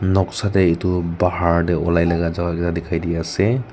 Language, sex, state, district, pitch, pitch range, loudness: Nagamese, male, Nagaland, Kohima, 85 Hz, 85-95 Hz, -19 LUFS